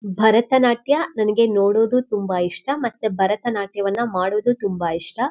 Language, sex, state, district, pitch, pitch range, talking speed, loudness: Kannada, female, Karnataka, Shimoga, 215 Hz, 200-240 Hz, 115 wpm, -20 LUFS